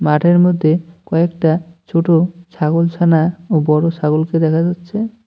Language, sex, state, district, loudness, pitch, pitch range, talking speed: Bengali, male, West Bengal, Cooch Behar, -15 LUFS, 170 Hz, 160-175 Hz, 115 wpm